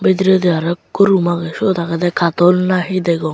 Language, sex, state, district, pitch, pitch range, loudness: Chakma, male, Tripura, Unakoti, 175 Hz, 170-185 Hz, -15 LUFS